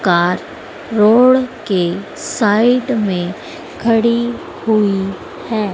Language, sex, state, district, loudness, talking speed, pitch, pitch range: Hindi, female, Madhya Pradesh, Dhar, -15 LUFS, 85 wpm, 215 Hz, 190-240 Hz